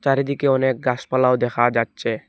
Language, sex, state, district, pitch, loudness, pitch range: Bengali, male, Assam, Hailakandi, 125 Hz, -20 LUFS, 120-135 Hz